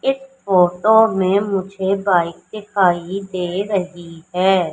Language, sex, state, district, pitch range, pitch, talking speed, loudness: Hindi, female, Madhya Pradesh, Katni, 180-200 Hz, 190 Hz, 115 wpm, -18 LUFS